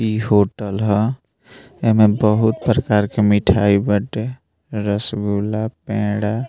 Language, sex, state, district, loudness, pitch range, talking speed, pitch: Bhojpuri, male, Bihar, Muzaffarpur, -18 LUFS, 105-110 Hz, 120 wpm, 105 Hz